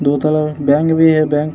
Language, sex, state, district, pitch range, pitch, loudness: Hindi, male, Bihar, Vaishali, 145-155 Hz, 150 Hz, -14 LUFS